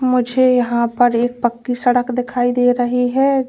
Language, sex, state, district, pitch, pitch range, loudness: Hindi, female, Uttar Pradesh, Lalitpur, 245 Hz, 245-250 Hz, -16 LUFS